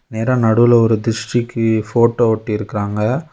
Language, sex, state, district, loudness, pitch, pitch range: Tamil, male, Tamil Nadu, Kanyakumari, -16 LUFS, 115 Hz, 110-120 Hz